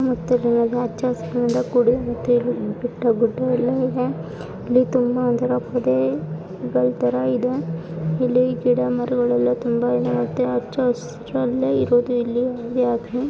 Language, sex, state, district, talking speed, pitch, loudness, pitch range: Kannada, female, Karnataka, Chamarajanagar, 65 wpm, 240 Hz, -21 LUFS, 155-250 Hz